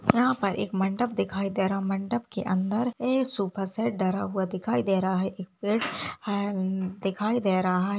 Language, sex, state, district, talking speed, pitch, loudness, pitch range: Hindi, female, Rajasthan, Churu, 195 wpm, 195 Hz, -28 LUFS, 190-220 Hz